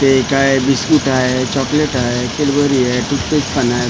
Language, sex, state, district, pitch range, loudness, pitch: Marathi, male, Maharashtra, Mumbai Suburban, 125-140 Hz, -15 LUFS, 135 Hz